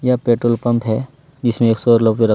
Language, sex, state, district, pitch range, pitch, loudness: Hindi, male, Chhattisgarh, Kabirdham, 115-125 Hz, 120 Hz, -16 LUFS